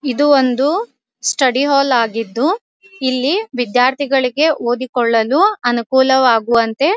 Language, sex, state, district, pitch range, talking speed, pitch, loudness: Kannada, female, Karnataka, Dharwad, 245-290 Hz, 85 wpm, 260 Hz, -15 LUFS